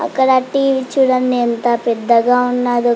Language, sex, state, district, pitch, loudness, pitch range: Telugu, female, Andhra Pradesh, Chittoor, 245 Hz, -15 LUFS, 240-260 Hz